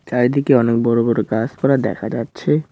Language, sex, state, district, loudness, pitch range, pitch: Bengali, male, West Bengal, Cooch Behar, -17 LUFS, 110-130 Hz, 115 Hz